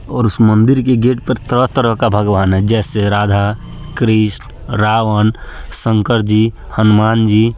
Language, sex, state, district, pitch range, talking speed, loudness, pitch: Hindi, male, Bihar, Sitamarhi, 105-115 Hz, 125 wpm, -13 LUFS, 110 Hz